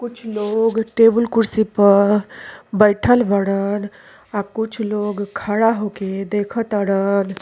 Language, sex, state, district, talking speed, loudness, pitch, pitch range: Bhojpuri, female, Uttar Pradesh, Deoria, 115 wpm, -18 LUFS, 210 Hz, 200-225 Hz